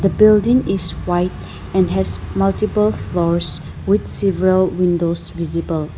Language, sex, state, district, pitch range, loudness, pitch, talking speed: English, female, Nagaland, Dimapur, 165-195 Hz, -17 LUFS, 180 Hz, 110 wpm